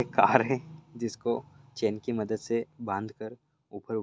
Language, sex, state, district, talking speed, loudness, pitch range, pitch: Hindi, male, Maharashtra, Pune, 180 wpm, -30 LUFS, 110-135 Hz, 115 Hz